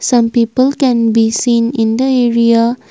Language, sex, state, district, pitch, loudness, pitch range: English, female, Assam, Kamrup Metropolitan, 235 Hz, -12 LUFS, 230-250 Hz